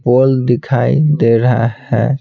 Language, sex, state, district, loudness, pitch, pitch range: Hindi, male, Bihar, Patna, -13 LUFS, 125 Hz, 120-135 Hz